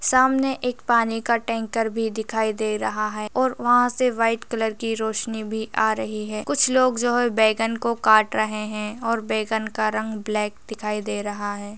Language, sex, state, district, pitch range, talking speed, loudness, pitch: Hindi, female, Chhattisgarh, Rajnandgaon, 215-235 Hz, 200 wpm, -22 LUFS, 220 Hz